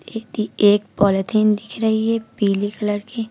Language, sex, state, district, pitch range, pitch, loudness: Hindi, female, Uttar Pradesh, Lucknow, 205-220 Hz, 215 Hz, -19 LUFS